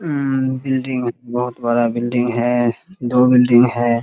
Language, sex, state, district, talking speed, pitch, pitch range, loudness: Hindi, male, Bihar, Muzaffarpur, 135 wpm, 120 Hz, 120-130 Hz, -17 LUFS